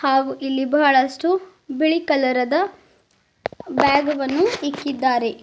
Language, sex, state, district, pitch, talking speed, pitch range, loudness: Kannada, female, Karnataka, Bidar, 285 Hz, 100 wpm, 270-320 Hz, -20 LUFS